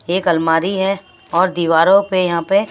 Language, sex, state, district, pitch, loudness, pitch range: Hindi, female, Bihar, West Champaran, 185 Hz, -15 LUFS, 170-195 Hz